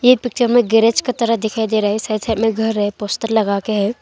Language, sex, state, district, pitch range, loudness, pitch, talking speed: Hindi, female, Arunachal Pradesh, Longding, 215-235 Hz, -17 LUFS, 220 Hz, 270 wpm